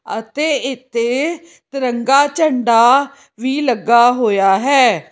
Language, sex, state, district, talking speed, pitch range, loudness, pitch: Punjabi, female, Chandigarh, Chandigarh, 95 wpm, 235-280 Hz, -14 LUFS, 255 Hz